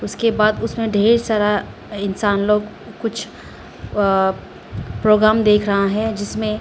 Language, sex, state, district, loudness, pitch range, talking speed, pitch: Hindi, female, Arunachal Pradesh, Lower Dibang Valley, -18 LUFS, 205-220 Hz, 125 wpm, 210 Hz